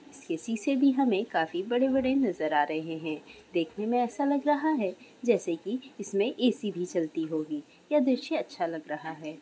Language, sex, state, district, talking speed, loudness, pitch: Hindi, female, Bihar, Saran, 185 wpm, -29 LUFS, 220 Hz